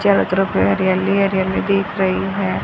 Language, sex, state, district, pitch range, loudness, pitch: Hindi, female, Haryana, Charkhi Dadri, 190-200 Hz, -17 LUFS, 195 Hz